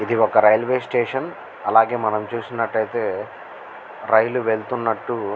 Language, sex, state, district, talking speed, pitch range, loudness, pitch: Telugu, male, Andhra Pradesh, Guntur, 125 wpm, 110-120 Hz, -20 LUFS, 115 Hz